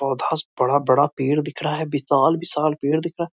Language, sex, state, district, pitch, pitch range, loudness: Hindi, male, Bihar, Muzaffarpur, 150 Hz, 140-160 Hz, -21 LUFS